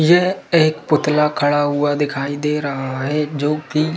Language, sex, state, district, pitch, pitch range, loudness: Hindi, male, Madhya Pradesh, Bhopal, 150 Hz, 145-155 Hz, -18 LUFS